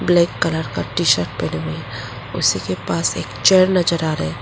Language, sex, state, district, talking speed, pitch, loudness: Hindi, female, Arunachal Pradesh, Lower Dibang Valley, 215 wpm, 160 Hz, -18 LUFS